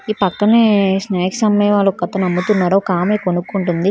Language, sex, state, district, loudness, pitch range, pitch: Telugu, female, Telangana, Hyderabad, -15 LUFS, 180-205 Hz, 195 Hz